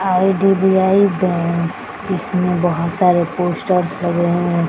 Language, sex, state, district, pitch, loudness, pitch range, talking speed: Hindi, female, Bihar, Jahanabad, 180 Hz, -16 LUFS, 175-190 Hz, 115 wpm